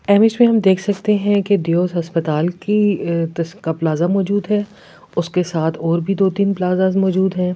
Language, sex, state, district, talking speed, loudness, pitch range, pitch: Hindi, female, Delhi, New Delhi, 175 wpm, -17 LUFS, 170-200 Hz, 190 Hz